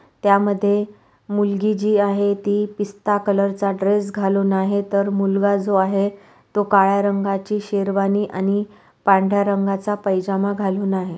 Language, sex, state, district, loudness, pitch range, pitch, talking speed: Marathi, female, Maharashtra, Pune, -19 LUFS, 195-205 Hz, 200 Hz, 135 wpm